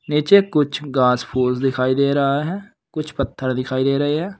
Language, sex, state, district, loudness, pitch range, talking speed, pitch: Hindi, male, Uttar Pradesh, Saharanpur, -19 LUFS, 130-155 Hz, 190 wpm, 140 Hz